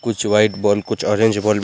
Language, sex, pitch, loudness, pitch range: Hindi, male, 105 Hz, -17 LUFS, 105-110 Hz